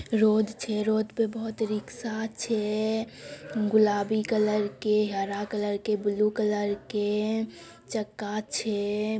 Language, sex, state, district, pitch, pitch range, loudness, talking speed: Maithili, female, Bihar, Samastipur, 215 Hz, 210-220 Hz, -28 LUFS, 115 wpm